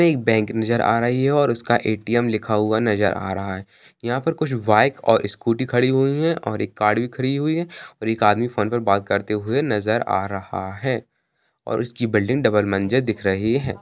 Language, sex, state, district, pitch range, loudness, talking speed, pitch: Hindi, male, Bihar, Bhagalpur, 105-130 Hz, -21 LUFS, 215 wpm, 115 Hz